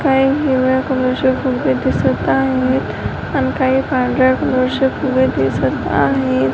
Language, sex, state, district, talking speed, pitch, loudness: Marathi, female, Maharashtra, Washim, 120 wpm, 255 Hz, -16 LUFS